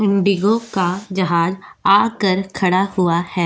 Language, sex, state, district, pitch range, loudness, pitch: Hindi, female, Goa, North and South Goa, 180-200 Hz, -17 LUFS, 190 Hz